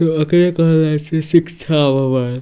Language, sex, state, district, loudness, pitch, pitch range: Maithili, male, Bihar, Samastipur, -15 LUFS, 160 Hz, 145-165 Hz